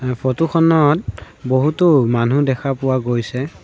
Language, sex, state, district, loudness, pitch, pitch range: Assamese, male, Assam, Sonitpur, -16 LUFS, 130 Hz, 125-150 Hz